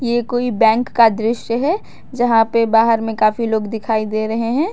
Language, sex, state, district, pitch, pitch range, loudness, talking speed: Hindi, female, Jharkhand, Garhwa, 230 Hz, 220-240 Hz, -16 LUFS, 205 wpm